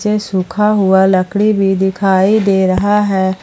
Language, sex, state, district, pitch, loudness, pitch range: Hindi, female, Jharkhand, Palamu, 195 Hz, -13 LUFS, 190-210 Hz